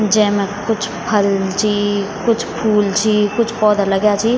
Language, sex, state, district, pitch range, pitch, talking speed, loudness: Garhwali, female, Uttarakhand, Tehri Garhwal, 205-220 Hz, 210 Hz, 150 wpm, -16 LUFS